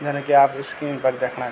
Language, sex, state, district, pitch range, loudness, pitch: Garhwali, male, Uttarakhand, Tehri Garhwal, 130-145 Hz, -20 LUFS, 140 Hz